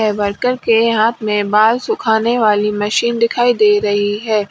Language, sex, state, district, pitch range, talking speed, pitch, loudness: Hindi, female, Uttar Pradesh, Lalitpur, 210-230 Hz, 175 wpm, 215 Hz, -14 LUFS